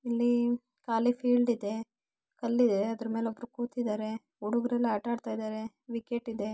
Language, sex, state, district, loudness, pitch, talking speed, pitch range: Kannada, female, Karnataka, Gulbarga, -31 LUFS, 235 Hz, 135 wpm, 220-240 Hz